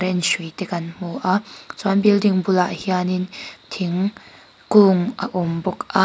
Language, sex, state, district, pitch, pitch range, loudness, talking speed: Mizo, female, Mizoram, Aizawl, 185 Hz, 180-195 Hz, -20 LUFS, 140 wpm